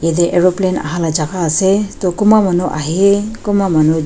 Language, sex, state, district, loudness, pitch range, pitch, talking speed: Nagamese, female, Nagaland, Dimapur, -14 LUFS, 165-200 Hz, 180 Hz, 175 wpm